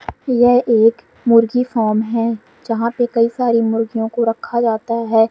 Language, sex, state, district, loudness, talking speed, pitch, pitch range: Hindi, female, Madhya Pradesh, Umaria, -16 LUFS, 160 wpm, 230 Hz, 225-240 Hz